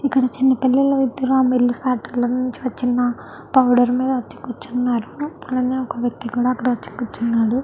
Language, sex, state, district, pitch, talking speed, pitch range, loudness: Telugu, female, Andhra Pradesh, Chittoor, 250 Hz, 140 wpm, 245-260 Hz, -20 LUFS